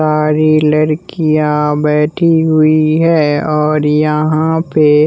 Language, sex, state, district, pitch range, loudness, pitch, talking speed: Hindi, male, Bihar, West Champaran, 150-155 Hz, -12 LUFS, 155 Hz, 95 wpm